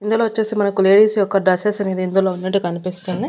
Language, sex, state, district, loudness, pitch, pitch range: Telugu, female, Andhra Pradesh, Annamaya, -17 LUFS, 195 Hz, 185-210 Hz